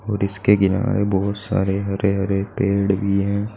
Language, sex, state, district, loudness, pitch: Hindi, male, Uttar Pradesh, Saharanpur, -20 LUFS, 100 Hz